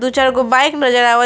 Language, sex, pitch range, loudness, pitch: Bhojpuri, female, 245-265 Hz, -13 LUFS, 260 Hz